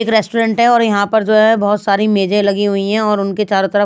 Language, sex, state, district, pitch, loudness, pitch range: Hindi, female, Bihar, Patna, 210 Hz, -13 LUFS, 200-220 Hz